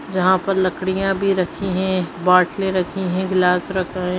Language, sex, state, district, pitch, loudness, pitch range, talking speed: Hindi, female, Chhattisgarh, Sarguja, 185 Hz, -19 LUFS, 180-190 Hz, 170 wpm